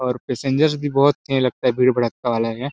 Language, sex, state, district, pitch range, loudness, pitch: Hindi, male, Chhattisgarh, Sarguja, 125-140 Hz, -19 LUFS, 130 Hz